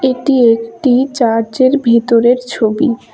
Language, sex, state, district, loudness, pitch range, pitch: Bengali, female, West Bengal, Cooch Behar, -12 LUFS, 230-260 Hz, 245 Hz